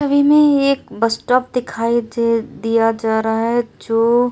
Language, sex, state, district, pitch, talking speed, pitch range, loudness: Hindi, female, Delhi, New Delhi, 235 Hz, 180 wpm, 225-255 Hz, -16 LUFS